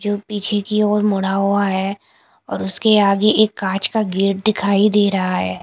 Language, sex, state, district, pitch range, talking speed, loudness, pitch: Hindi, female, Punjab, Kapurthala, 195-210 Hz, 190 wpm, -17 LUFS, 200 Hz